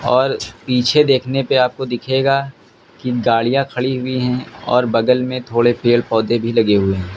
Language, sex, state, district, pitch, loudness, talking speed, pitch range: Hindi, male, Uttar Pradesh, Lucknow, 125 Hz, -16 LUFS, 175 wpm, 115-130 Hz